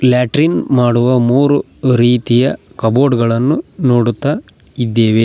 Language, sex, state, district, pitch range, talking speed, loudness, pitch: Kannada, male, Karnataka, Koppal, 120-135 Hz, 90 wpm, -13 LUFS, 125 Hz